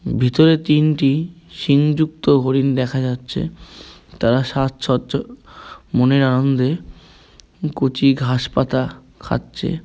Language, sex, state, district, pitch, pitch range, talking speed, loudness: Bengali, male, West Bengal, Kolkata, 135 Hz, 130-150 Hz, 95 wpm, -18 LUFS